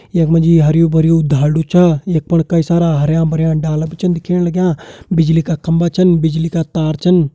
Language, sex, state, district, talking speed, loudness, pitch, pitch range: Hindi, male, Uttarakhand, Uttarkashi, 120 wpm, -13 LUFS, 165 Hz, 160-170 Hz